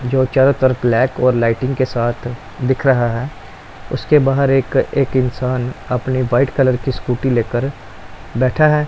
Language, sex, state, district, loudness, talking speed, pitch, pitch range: Hindi, male, Punjab, Pathankot, -16 LUFS, 160 wpm, 130 Hz, 120-135 Hz